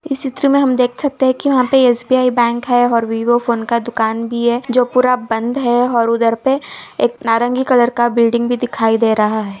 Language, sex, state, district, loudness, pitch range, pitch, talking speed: Hindi, female, Uttar Pradesh, Ghazipur, -15 LUFS, 230-255 Hz, 240 Hz, 230 wpm